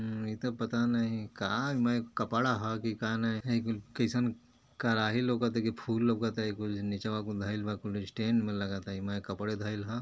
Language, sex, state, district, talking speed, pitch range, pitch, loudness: Bhojpuri, male, Uttar Pradesh, Ghazipur, 215 wpm, 105-115 Hz, 115 Hz, -33 LUFS